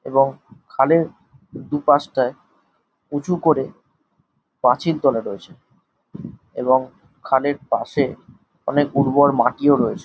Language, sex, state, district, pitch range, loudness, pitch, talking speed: Bengali, male, West Bengal, Jhargram, 135-150 Hz, -19 LUFS, 145 Hz, 95 wpm